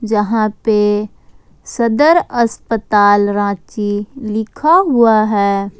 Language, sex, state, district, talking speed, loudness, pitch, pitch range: Hindi, female, Jharkhand, Ranchi, 85 wpm, -14 LUFS, 215 Hz, 205-230 Hz